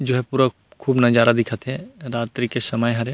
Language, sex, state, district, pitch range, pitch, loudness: Chhattisgarhi, male, Chhattisgarh, Rajnandgaon, 115-130 Hz, 120 Hz, -20 LUFS